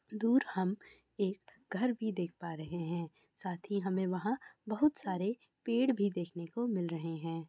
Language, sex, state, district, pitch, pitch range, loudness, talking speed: Hindi, female, West Bengal, Malda, 190 Hz, 175-225 Hz, -36 LUFS, 175 wpm